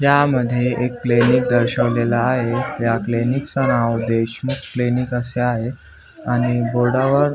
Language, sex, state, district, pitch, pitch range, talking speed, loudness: Marathi, male, Maharashtra, Aurangabad, 120 Hz, 120-130 Hz, 130 wpm, -19 LUFS